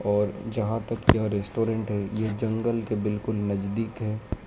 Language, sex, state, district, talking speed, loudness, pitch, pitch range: Hindi, male, Madhya Pradesh, Dhar, 160 wpm, -27 LUFS, 110 Hz, 105-115 Hz